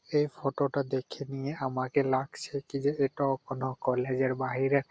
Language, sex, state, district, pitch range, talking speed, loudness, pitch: Bengali, male, West Bengal, Purulia, 130-140 Hz, 170 wpm, -31 LUFS, 135 Hz